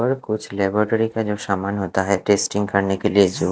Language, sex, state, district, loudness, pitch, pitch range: Hindi, male, Odisha, Khordha, -20 LUFS, 100 Hz, 95-110 Hz